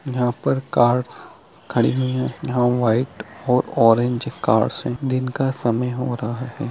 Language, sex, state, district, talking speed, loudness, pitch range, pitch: Hindi, male, West Bengal, Dakshin Dinajpur, 160 wpm, -21 LUFS, 120-130 Hz, 125 Hz